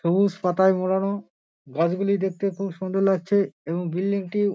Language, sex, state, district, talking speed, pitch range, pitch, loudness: Bengali, male, West Bengal, Dakshin Dinajpur, 145 wpm, 180-200 Hz, 190 Hz, -24 LUFS